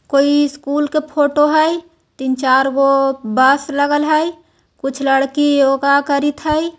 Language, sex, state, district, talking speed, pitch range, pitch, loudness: Hindi, female, Bihar, Jahanabad, 130 wpm, 270-305 Hz, 285 Hz, -15 LUFS